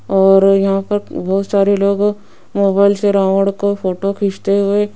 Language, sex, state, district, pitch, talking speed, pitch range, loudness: Hindi, female, Rajasthan, Jaipur, 200 Hz, 155 wpm, 195-200 Hz, -14 LUFS